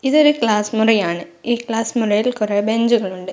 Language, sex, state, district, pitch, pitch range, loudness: Malayalam, female, Kerala, Kozhikode, 225 Hz, 210-235 Hz, -17 LUFS